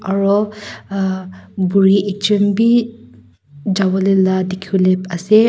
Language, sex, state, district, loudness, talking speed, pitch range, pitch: Nagamese, female, Nagaland, Kohima, -16 LUFS, 100 wpm, 185-200 Hz, 195 Hz